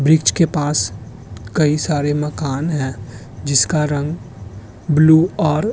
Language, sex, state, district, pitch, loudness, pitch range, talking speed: Hindi, male, Uttar Pradesh, Hamirpur, 145 Hz, -17 LUFS, 120-155 Hz, 125 wpm